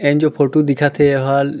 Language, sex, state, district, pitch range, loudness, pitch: Chhattisgarhi, male, Chhattisgarh, Rajnandgaon, 140-145 Hz, -15 LUFS, 145 Hz